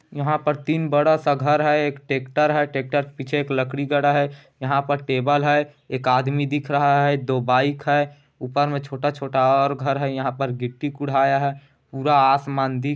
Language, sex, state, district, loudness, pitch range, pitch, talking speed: Hindi, male, Chhattisgarh, Korba, -21 LUFS, 135-145 Hz, 140 Hz, 200 wpm